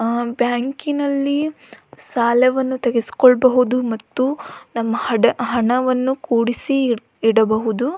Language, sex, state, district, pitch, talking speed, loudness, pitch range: Kannada, female, Karnataka, Belgaum, 245 Hz, 60 wpm, -18 LUFS, 235-265 Hz